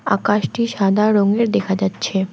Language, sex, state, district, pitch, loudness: Bengali, female, West Bengal, Alipurduar, 200 Hz, -18 LUFS